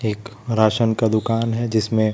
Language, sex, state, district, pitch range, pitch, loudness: Hindi, male, Chhattisgarh, Raipur, 110-115 Hz, 110 Hz, -20 LUFS